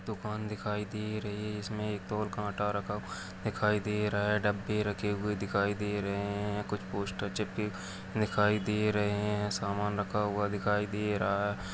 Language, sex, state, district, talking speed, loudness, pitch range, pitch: Hindi, male, Chhattisgarh, Jashpur, 175 wpm, -33 LUFS, 100-105 Hz, 105 Hz